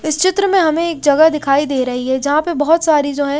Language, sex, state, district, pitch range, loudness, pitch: Hindi, female, Haryana, Rohtak, 285-330 Hz, -14 LUFS, 300 Hz